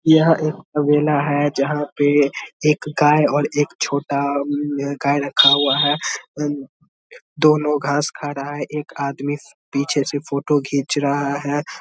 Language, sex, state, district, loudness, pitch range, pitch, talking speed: Hindi, male, Bihar, Samastipur, -19 LUFS, 140-150 Hz, 145 Hz, 150 wpm